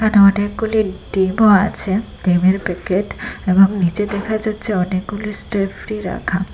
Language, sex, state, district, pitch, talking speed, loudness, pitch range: Bengali, female, Assam, Hailakandi, 200 Hz, 120 wpm, -17 LUFS, 185-210 Hz